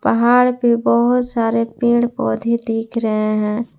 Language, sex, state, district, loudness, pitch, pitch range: Hindi, female, Jharkhand, Palamu, -17 LUFS, 235 Hz, 225-240 Hz